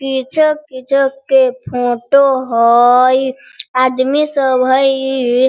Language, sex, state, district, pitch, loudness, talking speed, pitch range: Hindi, female, Bihar, Sitamarhi, 260 Hz, -13 LUFS, 100 wpm, 255-270 Hz